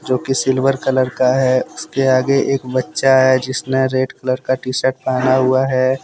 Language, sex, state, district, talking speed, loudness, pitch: Hindi, male, Jharkhand, Deoghar, 200 wpm, -16 LUFS, 130 Hz